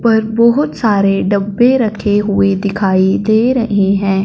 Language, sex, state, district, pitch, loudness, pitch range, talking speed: Hindi, female, Punjab, Fazilka, 205 Hz, -13 LUFS, 195-230 Hz, 140 wpm